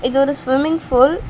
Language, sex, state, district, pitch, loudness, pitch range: Tamil, female, Tamil Nadu, Chennai, 275 Hz, -16 LUFS, 260-290 Hz